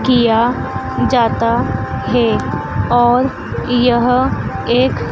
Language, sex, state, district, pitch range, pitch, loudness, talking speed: Hindi, female, Madhya Pradesh, Dhar, 240-250 Hz, 245 Hz, -15 LUFS, 80 wpm